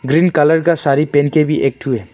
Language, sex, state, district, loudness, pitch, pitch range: Hindi, male, Arunachal Pradesh, Longding, -14 LUFS, 150 Hz, 140-155 Hz